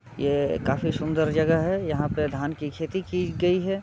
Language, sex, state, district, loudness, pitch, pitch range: Hindi, male, Bihar, Muzaffarpur, -25 LUFS, 155 Hz, 145-175 Hz